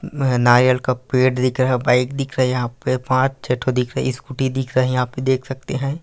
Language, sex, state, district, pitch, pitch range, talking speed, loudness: Hindi, male, Chhattisgarh, Raigarh, 130 Hz, 125-130 Hz, 280 wpm, -19 LUFS